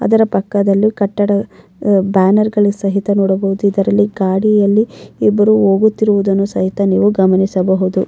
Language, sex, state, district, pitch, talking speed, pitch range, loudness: Kannada, female, Karnataka, Mysore, 200 Hz, 105 wpm, 195-210 Hz, -13 LUFS